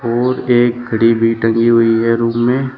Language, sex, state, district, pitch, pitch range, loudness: Hindi, male, Uttar Pradesh, Shamli, 115 Hz, 115-120 Hz, -13 LUFS